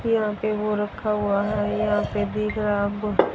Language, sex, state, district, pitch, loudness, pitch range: Hindi, female, Haryana, Rohtak, 210 Hz, -24 LUFS, 205-215 Hz